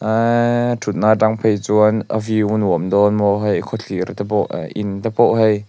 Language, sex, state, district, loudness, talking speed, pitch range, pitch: Mizo, male, Mizoram, Aizawl, -17 LUFS, 210 wpm, 105-110 Hz, 110 Hz